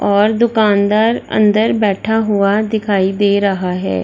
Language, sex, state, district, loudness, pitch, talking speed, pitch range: Hindi, female, Bihar, Darbhanga, -14 LUFS, 205 Hz, 135 wpm, 200-220 Hz